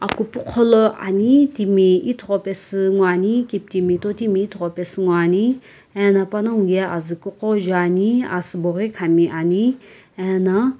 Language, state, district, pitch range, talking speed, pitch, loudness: Sumi, Nagaland, Kohima, 185-215 Hz, 145 wpm, 195 Hz, -18 LUFS